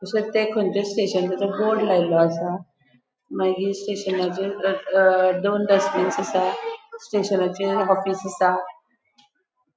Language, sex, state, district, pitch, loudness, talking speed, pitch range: Konkani, female, Goa, North and South Goa, 195 Hz, -22 LUFS, 100 wpm, 185-215 Hz